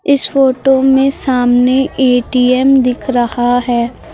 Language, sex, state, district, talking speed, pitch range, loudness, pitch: Hindi, female, Uttar Pradesh, Lucknow, 115 wpm, 245-265 Hz, -12 LUFS, 255 Hz